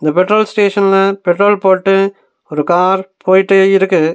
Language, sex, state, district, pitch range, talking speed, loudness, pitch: Tamil, male, Tamil Nadu, Nilgiris, 185-195 Hz, 100 wpm, -12 LUFS, 195 Hz